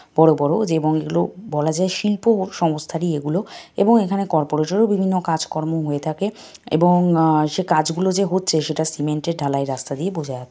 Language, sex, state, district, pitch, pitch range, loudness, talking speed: Bengali, female, West Bengal, North 24 Parganas, 160 Hz, 155-185 Hz, -20 LUFS, 190 wpm